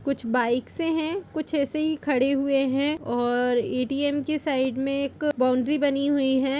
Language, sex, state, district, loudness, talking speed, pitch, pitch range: Hindi, female, Bihar, Gaya, -24 LUFS, 175 wpm, 275 Hz, 260-295 Hz